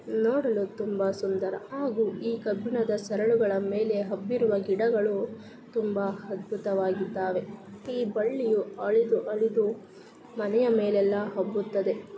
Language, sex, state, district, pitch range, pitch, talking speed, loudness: Kannada, female, Karnataka, Raichur, 200-230 Hz, 210 Hz, 100 wpm, -28 LUFS